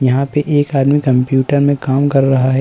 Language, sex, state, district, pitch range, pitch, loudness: Hindi, male, Uttar Pradesh, Muzaffarnagar, 130-145 Hz, 135 Hz, -14 LUFS